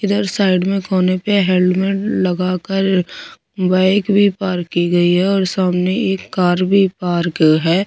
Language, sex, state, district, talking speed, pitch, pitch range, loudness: Hindi, female, Bihar, Kaimur, 150 wpm, 185 Hz, 180-195 Hz, -16 LUFS